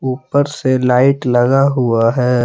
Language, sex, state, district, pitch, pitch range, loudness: Hindi, male, Jharkhand, Palamu, 130 Hz, 125-135 Hz, -14 LUFS